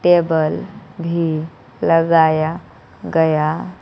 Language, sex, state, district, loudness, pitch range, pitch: Hindi, female, Bihar, West Champaran, -17 LUFS, 155-170 Hz, 160 Hz